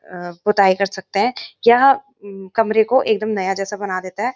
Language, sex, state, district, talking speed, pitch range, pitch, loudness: Hindi, female, Uttarakhand, Uttarkashi, 205 wpm, 190-235 Hz, 205 Hz, -18 LUFS